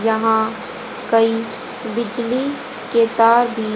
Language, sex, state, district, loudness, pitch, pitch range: Hindi, female, Haryana, Rohtak, -18 LUFS, 230 Hz, 225-245 Hz